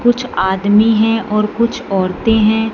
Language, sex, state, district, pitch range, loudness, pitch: Hindi, female, Punjab, Fazilka, 205-225 Hz, -14 LUFS, 220 Hz